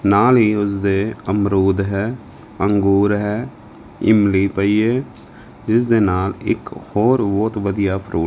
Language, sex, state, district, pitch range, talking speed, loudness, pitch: Punjabi, male, Punjab, Fazilka, 100-110 Hz, 140 wpm, -17 LUFS, 105 Hz